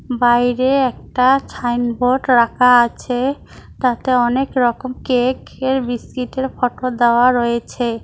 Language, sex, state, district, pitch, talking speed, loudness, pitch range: Bengali, female, West Bengal, Cooch Behar, 250 Hz, 105 wpm, -17 LUFS, 240-260 Hz